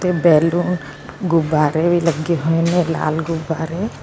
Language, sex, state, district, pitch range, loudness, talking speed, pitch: Punjabi, female, Karnataka, Bangalore, 160-175 Hz, -18 LUFS, 120 wpm, 165 Hz